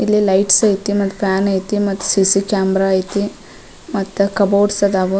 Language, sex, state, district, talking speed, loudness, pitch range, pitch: Kannada, female, Karnataka, Dharwad, 150 wpm, -16 LUFS, 195-205 Hz, 200 Hz